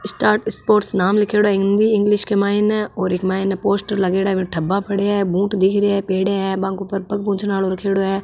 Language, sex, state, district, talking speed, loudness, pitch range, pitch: Marwari, female, Rajasthan, Nagaur, 210 wpm, -18 LUFS, 190-205 Hz, 200 Hz